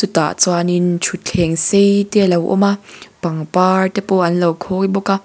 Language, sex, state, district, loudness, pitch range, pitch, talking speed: Mizo, female, Mizoram, Aizawl, -15 LUFS, 175-195 Hz, 185 Hz, 195 wpm